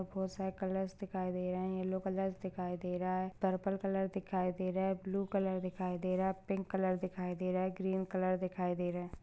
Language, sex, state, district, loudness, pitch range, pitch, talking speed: Hindi, female, Maharashtra, Sindhudurg, -37 LUFS, 185-190 Hz, 185 Hz, 240 wpm